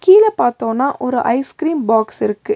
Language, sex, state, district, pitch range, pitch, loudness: Tamil, female, Tamil Nadu, Nilgiris, 235-330 Hz, 255 Hz, -16 LUFS